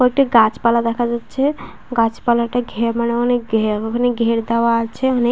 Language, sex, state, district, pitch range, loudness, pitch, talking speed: Bengali, female, West Bengal, Paschim Medinipur, 230-245 Hz, -17 LUFS, 235 Hz, 180 wpm